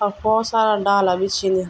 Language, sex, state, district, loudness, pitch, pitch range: Garhwali, female, Uttarakhand, Tehri Garhwal, -19 LUFS, 200 Hz, 190-215 Hz